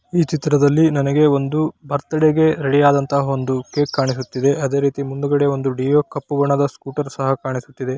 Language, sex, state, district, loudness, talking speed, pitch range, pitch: Kannada, male, Karnataka, Chamarajanagar, -18 LUFS, 175 wpm, 135-150 Hz, 140 Hz